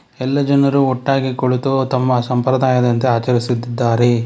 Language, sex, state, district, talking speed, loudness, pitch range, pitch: Kannada, male, Karnataka, Bangalore, 100 wpm, -16 LUFS, 120-135 Hz, 130 Hz